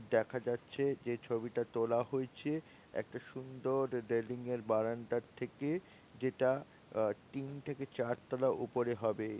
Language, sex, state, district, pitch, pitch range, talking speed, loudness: Bengali, male, West Bengal, North 24 Parganas, 125 Hz, 115-135 Hz, 120 wpm, -38 LUFS